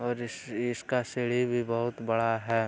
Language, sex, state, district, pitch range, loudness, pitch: Hindi, male, Bihar, Araria, 115-120 Hz, -30 LUFS, 120 Hz